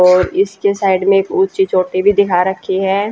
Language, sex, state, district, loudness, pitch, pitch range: Hindi, female, Haryana, Jhajjar, -14 LUFS, 195 Hz, 185-200 Hz